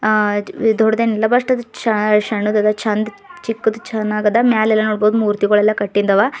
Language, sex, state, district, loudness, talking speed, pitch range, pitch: Kannada, female, Karnataka, Bidar, -16 LUFS, 130 wpm, 210-225 Hz, 215 Hz